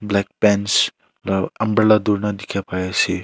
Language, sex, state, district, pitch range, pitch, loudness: Nagamese, male, Nagaland, Kohima, 95-105 Hz, 100 Hz, -19 LUFS